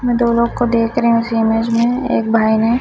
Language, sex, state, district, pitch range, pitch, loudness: Hindi, male, Chhattisgarh, Raipur, 225-240 Hz, 230 Hz, -15 LUFS